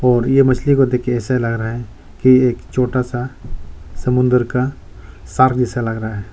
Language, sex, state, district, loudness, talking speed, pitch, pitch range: Hindi, male, Arunachal Pradesh, Lower Dibang Valley, -16 LUFS, 200 wpm, 125 Hz, 115-130 Hz